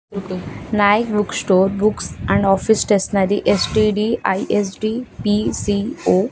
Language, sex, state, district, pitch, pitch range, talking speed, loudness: Odia, female, Odisha, Khordha, 205 Hz, 195-215 Hz, 75 wpm, -18 LUFS